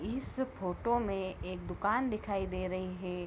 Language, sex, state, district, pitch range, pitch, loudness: Hindi, female, Bihar, Bhagalpur, 185-230 Hz, 190 Hz, -35 LUFS